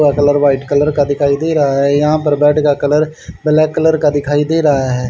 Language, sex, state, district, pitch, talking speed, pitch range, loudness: Hindi, male, Haryana, Charkhi Dadri, 145 Hz, 235 wpm, 145-150 Hz, -13 LUFS